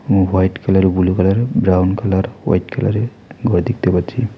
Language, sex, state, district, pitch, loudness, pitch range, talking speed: Bengali, male, West Bengal, Alipurduar, 95 Hz, -16 LUFS, 90-115 Hz, 190 wpm